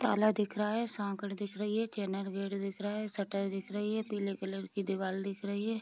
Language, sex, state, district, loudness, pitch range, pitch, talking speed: Hindi, female, Bihar, Vaishali, -36 LUFS, 195-210 Hz, 200 Hz, 245 wpm